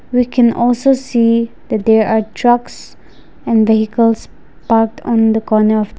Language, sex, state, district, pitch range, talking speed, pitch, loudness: English, female, Nagaland, Dimapur, 220-240 Hz, 130 wpm, 225 Hz, -13 LUFS